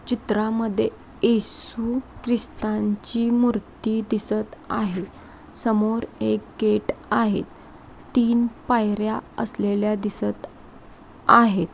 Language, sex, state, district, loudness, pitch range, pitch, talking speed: Marathi, female, Maharashtra, Pune, -23 LUFS, 210-235 Hz, 220 Hz, 80 wpm